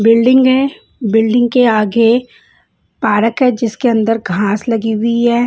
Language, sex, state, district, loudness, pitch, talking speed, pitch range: Hindi, female, Bihar, Patna, -13 LUFS, 230 Hz, 140 wpm, 220-245 Hz